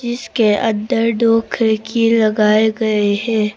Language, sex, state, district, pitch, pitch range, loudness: Hindi, female, Arunachal Pradesh, Papum Pare, 220 Hz, 215-230 Hz, -15 LUFS